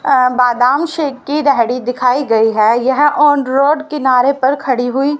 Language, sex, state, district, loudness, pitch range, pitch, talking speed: Hindi, female, Haryana, Rohtak, -13 LUFS, 250-290 Hz, 265 Hz, 175 wpm